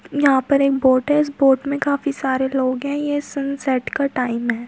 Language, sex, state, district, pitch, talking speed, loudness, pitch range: Hindi, female, Uttar Pradesh, Muzaffarnagar, 275 Hz, 220 wpm, -19 LUFS, 260-285 Hz